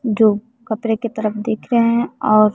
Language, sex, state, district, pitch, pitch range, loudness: Hindi, female, Bihar, West Champaran, 225 Hz, 215-235 Hz, -18 LUFS